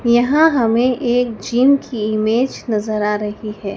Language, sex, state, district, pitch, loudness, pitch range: Hindi, female, Madhya Pradesh, Dhar, 235 Hz, -17 LUFS, 215-250 Hz